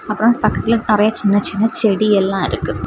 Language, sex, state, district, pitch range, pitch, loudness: Tamil, female, Tamil Nadu, Kanyakumari, 200-225 Hz, 215 Hz, -16 LUFS